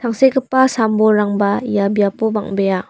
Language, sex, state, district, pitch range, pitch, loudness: Garo, female, Meghalaya, West Garo Hills, 200-235 Hz, 215 Hz, -16 LUFS